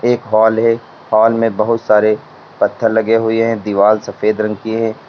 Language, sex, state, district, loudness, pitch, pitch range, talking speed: Hindi, male, Uttar Pradesh, Lalitpur, -14 LUFS, 110 Hz, 110-115 Hz, 190 wpm